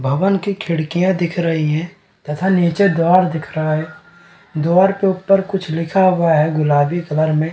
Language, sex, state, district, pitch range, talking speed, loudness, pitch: Hindi, male, Bihar, Kishanganj, 155-190 Hz, 175 wpm, -16 LUFS, 170 Hz